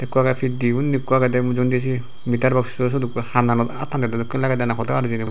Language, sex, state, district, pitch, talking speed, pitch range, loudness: Chakma, male, Tripura, Unakoti, 125 Hz, 235 wpm, 120-130 Hz, -21 LUFS